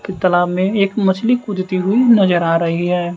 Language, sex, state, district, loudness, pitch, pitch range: Hindi, male, Bihar, West Champaran, -15 LUFS, 185 Hz, 175-205 Hz